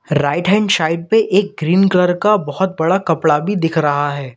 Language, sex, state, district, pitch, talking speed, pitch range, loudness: Hindi, male, Uttar Pradesh, Lalitpur, 175 Hz, 205 wpm, 155-195 Hz, -15 LUFS